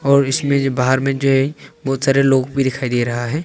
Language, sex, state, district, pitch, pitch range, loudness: Hindi, male, Arunachal Pradesh, Longding, 135 Hz, 130-140 Hz, -17 LUFS